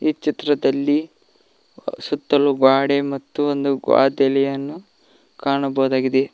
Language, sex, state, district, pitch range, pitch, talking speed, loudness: Kannada, male, Karnataka, Koppal, 135-145 Hz, 140 Hz, 65 wpm, -19 LUFS